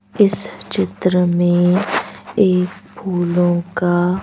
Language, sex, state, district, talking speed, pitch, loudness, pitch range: Hindi, female, Madhya Pradesh, Bhopal, 85 wpm, 180 Hz, -17 LUFS, 175-185 Hz